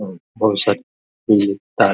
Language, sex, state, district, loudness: Hindi, male, Bihar, Araria, -18 LUFS